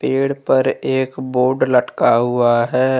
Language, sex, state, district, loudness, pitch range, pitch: Hindi, male, Jharkhand, Deoghar, -16 LUFS, 125-130 Hz, 130 Hz